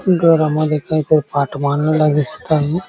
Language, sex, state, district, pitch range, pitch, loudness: Marathi, male, Maharashtra, Dhule, 150-155 Hz, 155 Hz, -15 LUFS